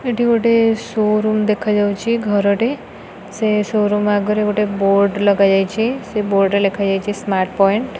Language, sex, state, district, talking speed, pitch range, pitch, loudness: Odia, female, Odisha, Khordha, 150 wpm, 200-220 Hz, 210 Hz, -16 LUFS